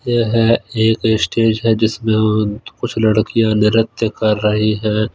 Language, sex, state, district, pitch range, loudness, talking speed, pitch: Hindi, male, Punjab, Fazilka, 110-115 Hz, -16 LUFS, 140 wpm, 110 Hz